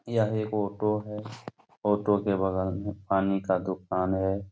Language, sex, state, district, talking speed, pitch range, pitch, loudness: Hindi, male, Bihar, Supaul, 160 wpm, 95-105 Hz, 100 Hz, -28 LUFS